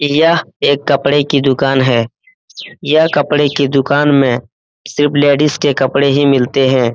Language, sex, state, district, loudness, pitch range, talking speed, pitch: Hindi, male, Bihar, Jamui, -12 LUFS, 135-145 Hz, 165 wpm, 140 Hz